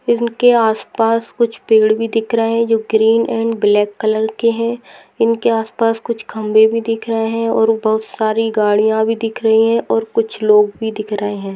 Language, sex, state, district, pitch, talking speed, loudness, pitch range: Hindi, female, Maharashtra, Dhule, 225 Hz, 190 wpm, -15 LUFS, 220-230 Hz